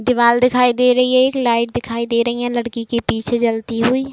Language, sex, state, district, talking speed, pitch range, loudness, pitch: Hindi, female, Uttar Pradesh, Jalaun, 235 wpm, 235-250 Hz, -16 LUFS, 240 Hz